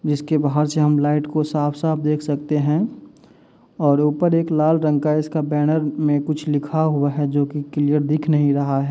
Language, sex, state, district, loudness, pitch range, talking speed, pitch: Hindi, male, Uttar Pradesh, Muzaffarnagar, -19 LUFS, 145-155 Hz, 195 wpm, 150 Hz